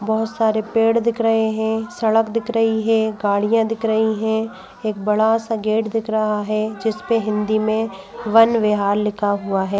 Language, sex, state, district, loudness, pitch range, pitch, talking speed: Hindi, female, Madhya Pradesh, Bhopal, -19 LUFS, 215-225 Hz, 220 Hz, 185 wpm